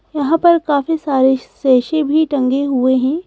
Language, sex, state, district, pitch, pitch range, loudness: Hindi, female, Madhya Pradesh, Bhopal, 285 Hz, 265-315 Hz, -15 LUFS